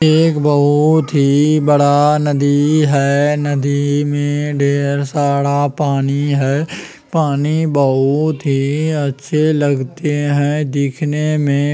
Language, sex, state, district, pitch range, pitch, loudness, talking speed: Magahi, male, Bihar, Gaya, 140-150 Hz, 145 Hz, -15 LUFS, 100 wpm